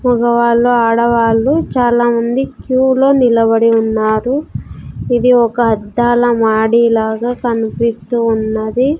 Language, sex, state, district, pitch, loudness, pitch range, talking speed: Telugu, female, Andhra Pradesh, Sri Satya Sai, 235 Hz, -13 LUFS, 225-245 Hz, 100 wpm